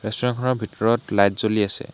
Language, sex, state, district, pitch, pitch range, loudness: Assamese, male, Assam, Hailakandi, 110 Hz, 105-125 Hz, -21 LUFS